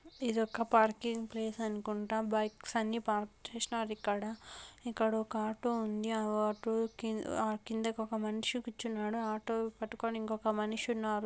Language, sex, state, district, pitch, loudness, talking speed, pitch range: Telugu, female, Andhra Pradesh, Anantapur, 220 Hz, -36 LUFS, 135 wpm, 215-230 Hz